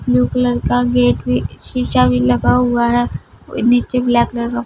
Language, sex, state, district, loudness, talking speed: Hindi, female, Punjab, Fazilka, -15 LUFS, 180 wpm